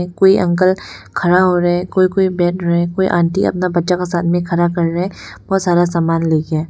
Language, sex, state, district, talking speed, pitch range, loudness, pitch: Hindi, female, Arunachal Pradesh, Lower Dibang Valley, 230 wpm, 170-185 Hz, -15 LUFS, 175 Hz